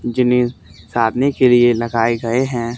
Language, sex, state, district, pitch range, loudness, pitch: Hindi, male, Haryana, Charkhi Dadri, 115-125 Hz, -16 LUFS, 120 Hz